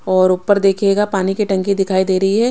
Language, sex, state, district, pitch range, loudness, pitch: Hindi, female, Odisha, Khordha, 190-200 Hz, -15 LUFS, 195 Hz